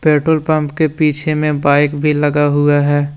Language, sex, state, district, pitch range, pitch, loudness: Hindi, male, Jharkhand, Deoghar, 145-155 Hz, 150 Hz, -14 LUFS